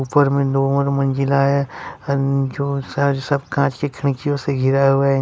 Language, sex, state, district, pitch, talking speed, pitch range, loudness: Hindi, male, Jharkhand, Ranchi, 140 Hz, 160 wpm, 135-140 Hz, -19 LUFS